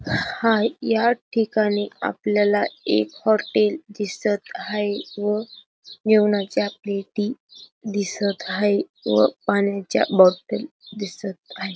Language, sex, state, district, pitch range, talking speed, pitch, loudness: Marathi, female, Maharashtra, Dhule, 200-215 Hz, 90 wpm, 205 Hz, -22 LUFS